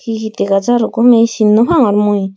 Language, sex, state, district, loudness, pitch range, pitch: Chakma, female, Tripura, Dhalai, -12 LUFS, 210-235 Hz, 225 Hz